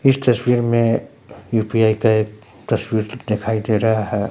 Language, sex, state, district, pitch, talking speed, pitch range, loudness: Hindi, male, Bihar, Katihar, 110 Hz, 155 wpm, 105-115 Hz, -19 LUFS